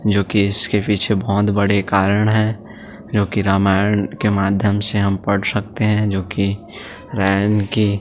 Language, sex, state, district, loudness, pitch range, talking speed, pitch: Hindi, male, Chhattisgarh, Sukma, -17 LUFS, 100-105 Hz, 150 wpm, 100 Hz